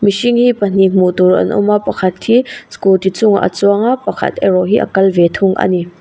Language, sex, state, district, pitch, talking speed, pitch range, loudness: Mizo, female, Mizoram, Aizawl, 195 Hz, 210 wpm, 185-210 Hz, -12 LUFS